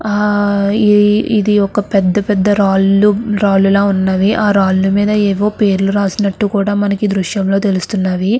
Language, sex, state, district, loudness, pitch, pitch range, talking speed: Telugu, female, Andhra Pradesh, Krishna, -13 LUFS, 205 Hz, 195-210 Hz, 135 wpm